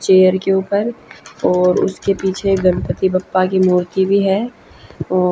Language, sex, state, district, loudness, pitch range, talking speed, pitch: Hindi, female, Haryana, Charkhi Dadri, -16 LUFS, 185-195 Hz, 145 wpm, 190 Hz